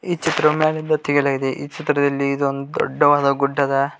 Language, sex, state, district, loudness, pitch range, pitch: Kannada, male, Karnataka, Koppal, -19 LUFS, 140-155 Hz, 145 Hz